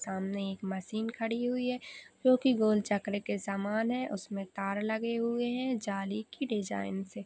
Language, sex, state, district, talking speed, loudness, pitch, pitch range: Hindi, female, Chhattisgarh, Raigarh, 180 wpm, -33 LUFS, 210 Hz, 195-235 Hz